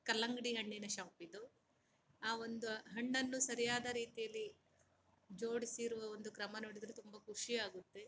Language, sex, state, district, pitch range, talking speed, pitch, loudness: Kannada, male, Karnataka, Mysore, 215-240 Hz, 105 wpm, 230 Hz, -43 LUFS